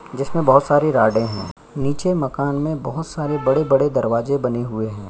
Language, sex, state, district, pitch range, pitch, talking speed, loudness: Hindi, male, Chhattisgarh, Kabirdham, 115-150 Hz, 135 Hz, 175 wpm, -19 LUFS